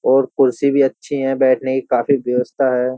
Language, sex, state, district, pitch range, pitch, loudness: Hindi, male, Uttar Pradesh, Jyotiba Phule Nagar, 130-135 Hz, 130 Hz, -17 LUFS